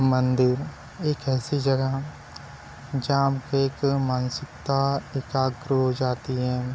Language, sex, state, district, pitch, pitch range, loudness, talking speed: Hindi, male, Chhattisgarh, Bilaspur, 135 Hz, 130-140 Hz, -25 LUFS, 105 wpm